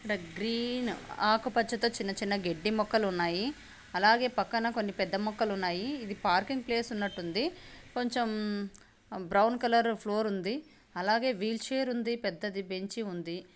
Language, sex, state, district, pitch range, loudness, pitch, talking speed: Telugu, female, Andhra Pradesh, Anantapur, 195-235 Hz, -31 LUFS, 215 Hz, 135 wpm